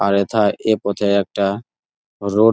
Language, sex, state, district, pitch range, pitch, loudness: Bengali, male, West Bengal, Jalpaiguri, 100-110 Hz, 100 Hz, -18 LUFS